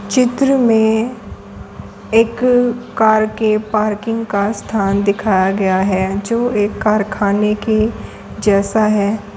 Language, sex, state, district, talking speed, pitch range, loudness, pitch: Hindi, female, Uttar Pradesh, Saharanpur, 110 wpm, 200-225 Hz, -15 LUFS, 215 Hz